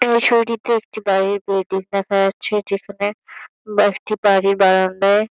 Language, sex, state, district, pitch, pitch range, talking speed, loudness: Bengali, female, West Bengal, Kolkata, 200 Hz, 195-215 Hz, 125 wpm, -18 LUFS